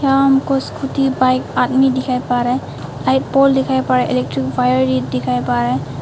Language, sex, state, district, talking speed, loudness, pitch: Hindi, female, Arunachal Pradesh, Papum Pare, 220 wpm, -16 LUFS, 245 Hz